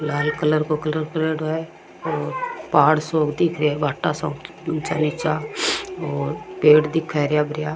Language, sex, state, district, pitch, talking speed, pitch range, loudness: Rajasthani, female, Rajasthan, Churu, 155 Hz, 170 wpm, 150-160 Hz, -21 LUFS